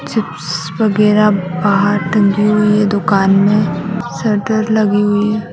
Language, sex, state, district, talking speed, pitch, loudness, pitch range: Hindi, female, Bihar, Purnia, 130 wpm, 205 Hz, -14 LUFS, 195-210 Hz